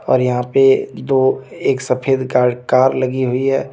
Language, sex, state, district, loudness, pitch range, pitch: Hindi, male, Jharkhand, Deoghar, -16 LUFS, 125-135 Hz, 130 Hz